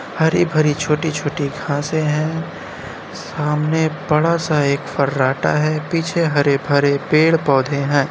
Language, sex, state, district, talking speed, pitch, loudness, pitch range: Hindi, male, Uttar Pradesh, Muzaffarnagar, 110 wpm, 150 Hz, -18 LUFS, 140-160 Hz